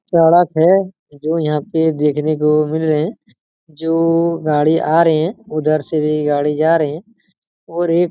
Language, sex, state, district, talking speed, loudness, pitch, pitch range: Hindi, male, Chhattisgarh, Raigarh, 175 wpm, -16 LUFS, 160 Hz, 150-170 Hz